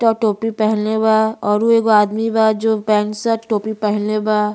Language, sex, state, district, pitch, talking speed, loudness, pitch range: Bhojpuri, female, Uttar Pradesh, Ghazipur, 220 Hz, 185 wpm, -16 LUFS, 210-225 Hz